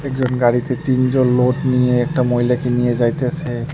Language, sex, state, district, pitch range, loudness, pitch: Bengali, male, West Bengal, Alipurduar, 125-130 Hz, -17 LUFS, 125 Hz